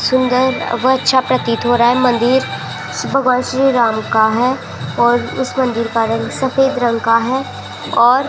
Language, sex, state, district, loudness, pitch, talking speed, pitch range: Hindi, female, Rajasthan, Jaipur, -15 LUFS, 250 Hz, 165 wpm, 235-260 Hz